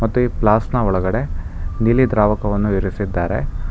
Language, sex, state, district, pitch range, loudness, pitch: Kannada, male, Karnataka, Bangalore, 90-115 Hz, -18 LUFS, 100 Hz